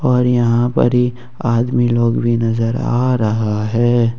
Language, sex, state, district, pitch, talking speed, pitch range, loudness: Hindi, male, Jharkhand, Ranchi, 120 Hz, 160 wpm, 115-125 Hz, -16 LUFS